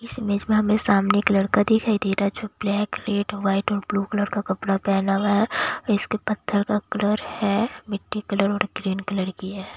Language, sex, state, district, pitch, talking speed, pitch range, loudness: Hindi, female, Bihar, Katihar, 205 Hz, 210 wpm, 200-210 Hz, -23 LUFS